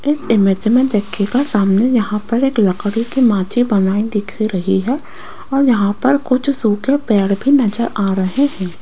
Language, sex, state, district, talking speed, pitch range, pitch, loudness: Hindi, female, Rajasthan, Jaipur, 175 wpm, 200-260 Hz, 220 Hz, -15 LUFS